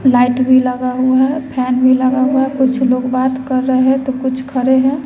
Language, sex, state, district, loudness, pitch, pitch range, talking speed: Hindi, female, Bihar, West Champaran, -14 LUFS, 260 Hz, 255-265 Hz, 225 wpm